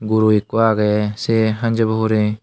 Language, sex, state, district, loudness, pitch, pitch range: Chakma, male, Tripura, Unakoti, -17 LUFS, 110 Hz, 105-110 Hz